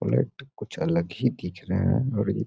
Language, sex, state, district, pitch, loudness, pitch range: Hindi, male, Bihar, Samastipur, 100 Hz, -27 LUFS, 90-125 Hz